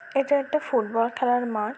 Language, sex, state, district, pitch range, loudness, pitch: Bengali, female, West Bengal, Purulia, 230-280 Hz, -24 LUFS, 245 Hz